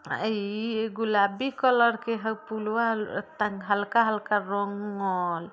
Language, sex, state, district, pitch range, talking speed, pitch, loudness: Bajjika, female, Bihar, Vaishali, 200-225 Hz, 120 wpm, 215 Hz, -27 LUFS